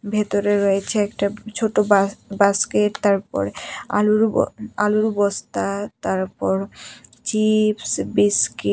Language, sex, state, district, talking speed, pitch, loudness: Bengali, female, Tripura, West Tripura, 90 wpm, 200 Hz, -20 LUFS